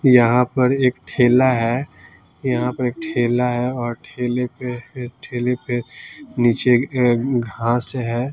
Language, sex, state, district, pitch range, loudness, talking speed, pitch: Hindi, male, Bihar, East Champaran, 120-130 Hz, -19 LUFS, 135 wpm, 125 Hz